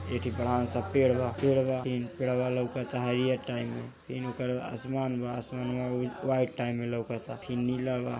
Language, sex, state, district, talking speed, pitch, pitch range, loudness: Hindi, male, Uttar Pradesh, Gorakhpur, 145 wpm, 125 Hz, 120-130 Hz, -31 LUFS